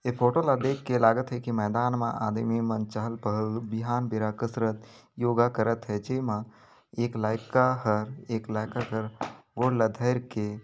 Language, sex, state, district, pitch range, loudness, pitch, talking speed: Sadri, male, Chhattisgarh, Jashpur, 110-125 Hz, -28 LUFS, 115 Hz, 170 wpm